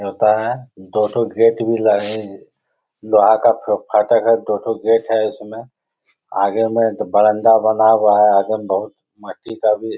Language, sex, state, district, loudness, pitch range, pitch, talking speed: Hindi, male, Bihar, Bhagalpur, -16 LUFS, 105-115 Hz, 110 Hz, 180 wpm